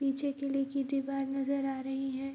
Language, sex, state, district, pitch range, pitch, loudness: Hindi, female, Bihar, Vaishali, 270-275 Hz, 275 Hz, -34 LUFS